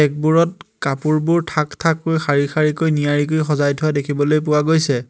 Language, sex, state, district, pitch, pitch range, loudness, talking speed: Assamese, male, Assam, Hailakandi, 150 Hz, 145-160 Hz, -18 LUFS, 130 wpm